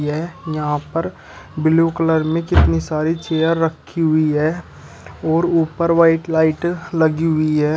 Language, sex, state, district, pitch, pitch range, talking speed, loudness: Hindi, male, Uttar Pradesh, Shamli, 160 Hz, 155-165 Hz, 155 wpm, -18 LUFS